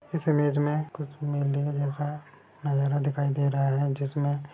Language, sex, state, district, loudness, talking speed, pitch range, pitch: Hindi, male, Bihar, Sitamarhi, -28 LUFS, 170 wpm, 140-145 Hz, 145 Hz